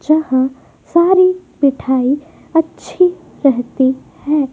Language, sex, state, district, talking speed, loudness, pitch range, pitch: Hindi, female, Madhya Pradesh, Dhar, 80 wpm, -15 LUFS, 265-340 Hz, 290 Hz